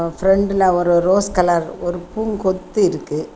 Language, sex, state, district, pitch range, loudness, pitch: Tamil, female, Tamil Nadu, Kanyakumari, 175-195 Hz, -17 LUFS, 185 Hz